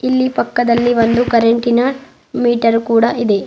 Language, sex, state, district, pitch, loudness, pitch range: Kannada, female, Karnataka, Bidar, 240 Hz, -14 LUFS, 230-245 Hz